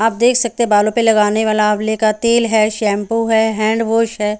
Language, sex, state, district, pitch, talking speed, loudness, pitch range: Hindi, female, Haryana, Charkhi Dadri, 220 Hz, 220 wpm, -15 LUFS, 215-230 Hz